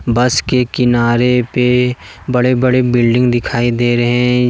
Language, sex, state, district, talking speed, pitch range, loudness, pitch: Hindi, male, Jharkhand, Deoghar, 145 wpm, 120-125 Hz, -13 LUFS, 125 Hz